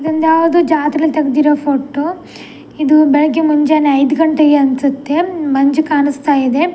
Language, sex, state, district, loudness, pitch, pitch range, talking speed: Kannada, female, Karnataka, Dakshina Kannada, -12 LUFS, 300 Hz, 285-315 Hz, 125 wpm